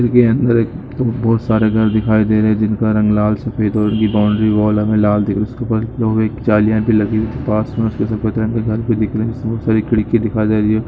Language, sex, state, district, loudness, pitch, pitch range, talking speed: Hindi, male, Jharkhand, Sahebganj, -15 LUFS, 110 Hz, 105-115 Hz, 220 wpm